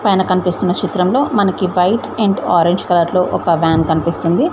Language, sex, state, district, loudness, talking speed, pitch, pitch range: Telugu, female, Telangana, Mahabubabad, -15 LUFS, 170 wpm, 180 Hz, 170-195 Hz